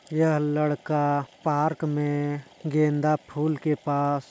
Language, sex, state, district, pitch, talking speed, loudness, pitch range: Hindi, male, Chhattisgarh, Balrampur, 150 Hz, 110 wpm, -26 LUFS, 145-155 Hz